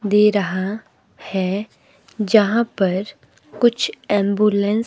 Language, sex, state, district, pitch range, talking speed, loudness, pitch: Hindi, female, Himachal Pradesh, Shimla, 195-215 Hz, 100 wpm, -19 LUFS, 205 Hz